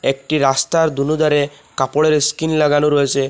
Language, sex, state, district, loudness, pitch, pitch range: Bengali, male, Assam, Hailakandi, -16 LUFS, 145 Hz, 140-155 Hz